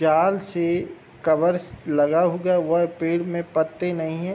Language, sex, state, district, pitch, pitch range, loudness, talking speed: Hindi, male, Uttar Pradesh, Hamirpur, 170 Hz, 160-175 Hz, -22 LUFS, 150 wpm